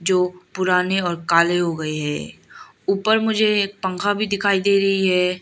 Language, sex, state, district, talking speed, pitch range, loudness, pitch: Hindi, female, Arunachal Pradesh, Lower Dibang Valley, 175 wpm, 180-200 Hz, -20 LUFS, 190 Hz